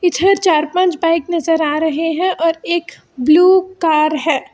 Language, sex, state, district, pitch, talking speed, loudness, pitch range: Hindi, female, Karnataka, Bangalore, 330 Hz, 170 wpm, -15 LUFS, 315-355 Hz